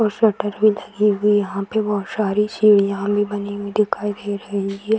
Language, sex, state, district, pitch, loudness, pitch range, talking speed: Hindi, female, Bihar, Jamui, 205 Hz, -19 LUFS, 200-210 Hz, 205 wpm